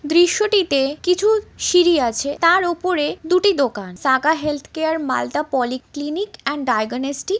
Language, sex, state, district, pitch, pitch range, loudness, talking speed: Bengali, female, West Bengal, Malda, 305 Hz, 275-355 Hz, -19 LUFS, 140 wpm